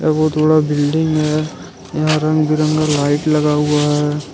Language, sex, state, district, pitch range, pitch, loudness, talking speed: Hindi, male, Jharkhand, Ranchi, 150-155 Hz, 155 Hz, -15 LUFS, 150 wpm